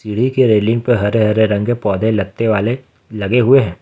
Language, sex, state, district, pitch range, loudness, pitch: Hindi, male, Jharkhand, Ranchi, 105-120 Hz, -15 LUFS, 110 Hz